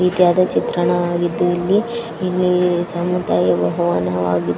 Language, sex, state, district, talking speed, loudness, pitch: Kannada, female, Karnataka, Chamarajanagar, 80 wpm, -18 LUFS, 175 Hz